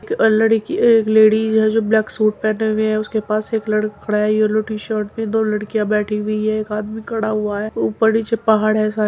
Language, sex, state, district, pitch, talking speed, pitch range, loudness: Hindi, female, Uttar Pradesh, Muzaffarnagar, 215 Hz, 240 wpm, 215-220 Hz, -17 LUFS